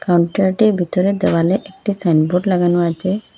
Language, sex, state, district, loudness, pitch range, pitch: Bengali, female, Assam, Hailakandi, -16 LUFS, 175-195 Hz, 185 Hz